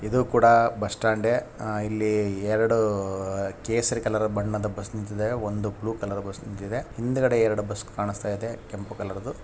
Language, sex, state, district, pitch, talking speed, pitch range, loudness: Kannada, male, Karnataka, Raichur, 105 Hz, 165 wpm, 105-115 Hz, -26 LUFS